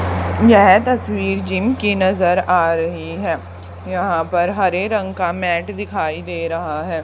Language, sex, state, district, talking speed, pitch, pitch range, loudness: Hindi, female, Haryana, Charkhi Dadri, 155 wpm, 175 Hz, 130-190 Hz, -17 LUFS